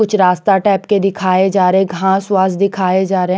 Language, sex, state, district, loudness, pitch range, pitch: Hindi, female, Chandigarh, Chandigarh, -14 LUFS, 185-195 Hz, 190 Hz